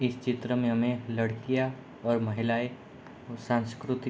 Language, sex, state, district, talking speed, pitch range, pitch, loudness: Hindi, male, Bihar, Sitamarhi, 145 wpm, 115-125 Hz, 120 Hz, -30 LUFS